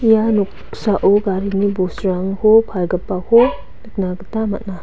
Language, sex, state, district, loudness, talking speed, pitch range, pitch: Garo, female, Meghalaya, West Garo Hills, -17 LUFS, 100 wpm, 185-220 Hz, 200 Hz